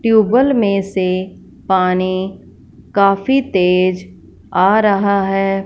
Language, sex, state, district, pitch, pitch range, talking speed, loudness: Hindi, female, Punjab, Fazilka, 195 Hz, 185-200 Hz, 95 wpm, -15 LUFS